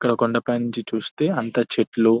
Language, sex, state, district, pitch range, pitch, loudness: Telugu, male, Telangana, Nalgonda, 115-120 Hz, 115 Hz, -22 LUFS